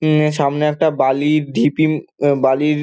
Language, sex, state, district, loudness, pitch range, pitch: Bengali, male, West Bengal, Dakshin Dinajpur, -16 LUFS, 140-155 Hz, 150 Hz